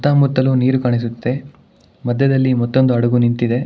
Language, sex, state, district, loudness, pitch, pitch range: Kannada, male, Karnataka, Bangalore, -16 LUFS, 125 Hz, 120-130 Hz